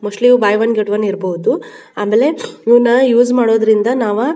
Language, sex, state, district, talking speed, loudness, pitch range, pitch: Kannada, female, Karnataka, Bijapur, 165 wpm, -13 LUFS, 210-245 Hz, 225 Hz